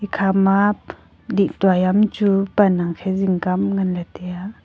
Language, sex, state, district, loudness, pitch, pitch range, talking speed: Wancho, female, Arunachal Pradesh, Longding, -19 LUFS, 195 Hz, 185-200 Hz, 205 wpm